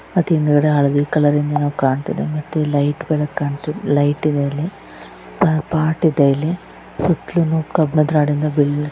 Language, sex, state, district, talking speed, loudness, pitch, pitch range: Kannada, female, Karnataka, Raichur, 140 wpm, -18 LUFS, 150 Hz, 145-155 Hz